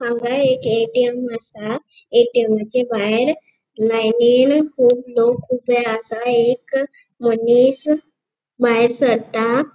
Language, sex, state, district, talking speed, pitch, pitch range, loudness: Konkani, female, Goa, North and South Goa, 90 wpm, 245 Hz, 230-265 Hz, -17 LUFS